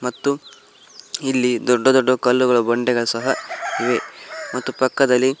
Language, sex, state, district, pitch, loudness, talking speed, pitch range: Kannada, male, Karnataka, Koppal, 125 Hz, -19 LUFS, 110 wpm, 125-130 Hz